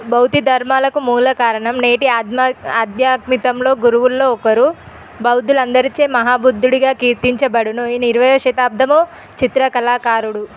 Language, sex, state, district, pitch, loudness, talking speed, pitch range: Telugu, female, Telangana, Nalgonda, 250 Hz, -14 LUFS, 90 wpm, 240-265 Hz